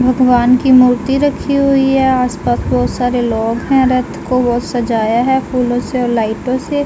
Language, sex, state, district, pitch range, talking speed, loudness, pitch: Hindi, female, Uttar Pradesh, Jalaun, 240-265 Hz, 175 wpm, -13 LUFS, 250 Hz